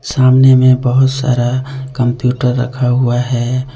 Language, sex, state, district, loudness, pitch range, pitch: Hindi, male, Jharkhand, Deoghar, -13 LUFS, 125-130 Hz, 130 Hz